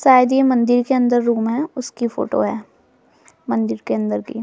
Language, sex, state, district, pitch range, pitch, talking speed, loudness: Hindi, female, Delhi, New Delhi, 225-255 Hz, 240 Hz, 190 wpm, -18 LUFS